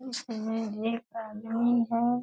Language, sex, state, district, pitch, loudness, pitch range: Hindi, female, Bihar, Purnia, 230 Hz, -30 LUFS, 225-240 Hz